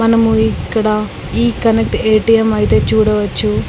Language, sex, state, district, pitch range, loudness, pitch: Telugu, female, Telangana, Karimnagar, 210-225 Hz, -13 LUFS, 220 Hz